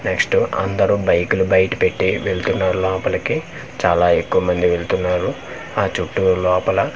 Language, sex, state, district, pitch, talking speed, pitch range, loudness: Telugu, male, Andhra Pradesh, Manyam, 95 Hz, 120 wpm, 90-115 Hz, -18 LUFS